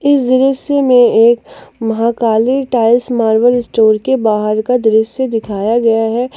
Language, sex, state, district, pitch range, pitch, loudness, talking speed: Hindi, female, Jharkhand, Palamu, 225-250 Hz, 235 Hz, -12 LUFS, 140 wpm